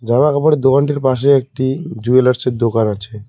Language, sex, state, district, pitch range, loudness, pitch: Bengali, male, West Bengal, Cooch Behar, 120-140 Hz, -15 LUFS, 130 Hz